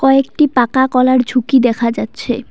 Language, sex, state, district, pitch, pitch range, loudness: Bengali, female, West Bengal, Cooch Behar, 255 Hz, 240-270 Hz, -14 LUFS